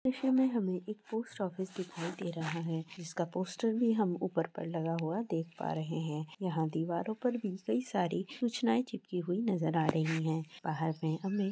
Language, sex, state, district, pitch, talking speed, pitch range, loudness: Hindi, female, Jharkhand, Jamtara, 180 Hz, 205 wpm, 165-220 Hz, -35 LUFS